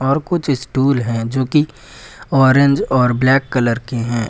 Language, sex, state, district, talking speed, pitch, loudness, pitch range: Hindi, male, Uttar Pradesh, Lucknow, 155 wpm, 130 Hz, -16 LUFS, 120-140 Hz